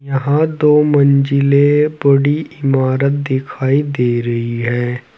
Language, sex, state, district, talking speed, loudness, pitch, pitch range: Hindi, male, Uttar Pradesh, Saharanpur, 105 wpm, -14 LUFS, 140 Hz, 130-145 Hz